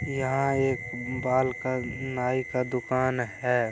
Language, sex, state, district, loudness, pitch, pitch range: Hindi, male, Bihar, Araria, -28 LUFS, 130 Hz, 125-130 Hz